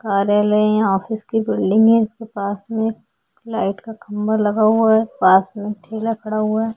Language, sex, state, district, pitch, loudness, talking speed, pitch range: Hindi, female, Maharashtra, Chandrapur, 215 Hz, -18 LUFS, 185 wpm, 210-225 Hz